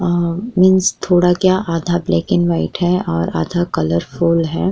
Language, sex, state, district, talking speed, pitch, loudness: Hindi, female, Uttar Pradesh, Jyotiba Phule Nagar, 165 wpm, 175 Hz, -16 LUFS